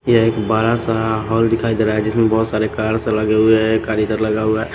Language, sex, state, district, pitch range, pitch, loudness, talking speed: Hindi, male, Maharashtra, Washim, 110-115 Hz, 110 Hz, -17 LUFS, 280 wpm